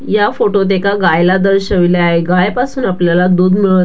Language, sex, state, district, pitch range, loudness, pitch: Marathi, female, Maharashtra, Dhule, 180-200 Hz, -12 LUFS, 190 Hz